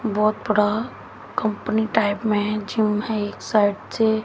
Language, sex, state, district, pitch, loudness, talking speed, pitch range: Hindi, female, Haryana, Jhajjar, 215 Hz, -22 LUFS, 155 wpm, 210-220 Hz